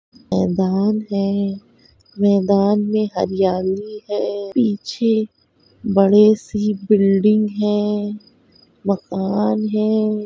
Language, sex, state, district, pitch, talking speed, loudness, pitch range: Hindi, female, Uttar Pradesh, Budaun, 210 Hz, 75 wpm, -18 LUFS, 200-215 Hz